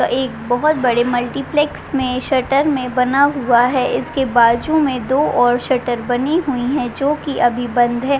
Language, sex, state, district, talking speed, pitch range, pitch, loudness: Hindi, female, Uttar Pradesh, Deoria, 170 wpm, 245-275 Hz, 255 Hz, -16 LUFS